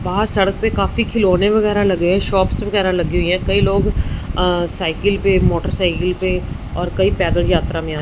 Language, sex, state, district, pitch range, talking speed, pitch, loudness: Hindi, female, Punjab, Fazilka, 180-200 Hz, 185 wpm, 185 Hz, -17 LUFS